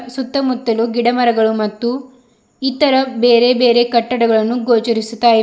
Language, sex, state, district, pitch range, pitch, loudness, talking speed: Kannada, female, Karnataka, Bidar, 230-250 Hz, 240 Hz, -15 LUFS, 100 wpm